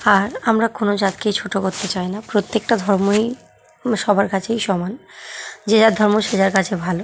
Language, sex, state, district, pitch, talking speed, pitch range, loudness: Bengali, female, West Bengal, North 24 Parganas, 205 Hz, 170 wpm, 195-220 Hz, -18 LUFS